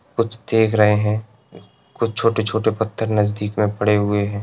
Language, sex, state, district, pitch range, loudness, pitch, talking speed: Hindi, male, Uttar Pradesh, Etah, 105-110 Hz, -19 LUFS, 105 Hz, 160 wpm